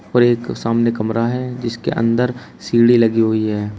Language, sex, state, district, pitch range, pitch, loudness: Hindi, male, Uttar Pradesh, Shamli, 110-120 Hz, 115 Hz, -17 LUFS